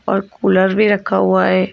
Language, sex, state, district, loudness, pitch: Hindi, female, Uttar Pradesh, Shamli, -15 LUFS, 190 Hz